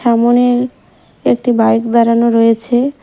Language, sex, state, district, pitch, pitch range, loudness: Bengali, female, West Bengal, Cooch Behar, 235 Hz, 230-245 Hz, -12 LUFS